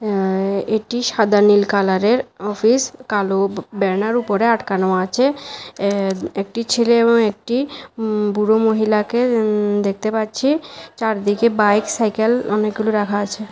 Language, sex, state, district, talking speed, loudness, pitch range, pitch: Bengali, female, Tripura, West Tripura, 125 wpm, -18 LUFS, 205-235 Hz, 215 Hz